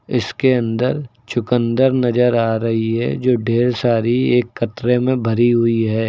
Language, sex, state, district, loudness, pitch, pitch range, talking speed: Hindi, male, Uttar Pradesh, Lucknow, -17 LUFS, 120 Hz, 115-125 Hz, 160 wpm